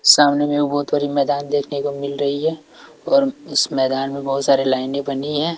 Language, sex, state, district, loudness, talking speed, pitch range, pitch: Hindi, male, Bihar, West Champaran, -19 LUFS, 215 wpm, 140-145 Hz, 145 Hz